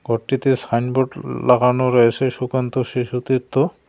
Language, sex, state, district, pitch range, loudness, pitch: Bengali, male, West Bengal, Cooch Behar, 125-130 Hz, -19 LUFS, 125 Hz